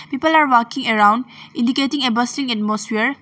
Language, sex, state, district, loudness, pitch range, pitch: English, female, Arunachal Pradesh, Longding, -17 LUFS, 225-275 Hz, 245 Hz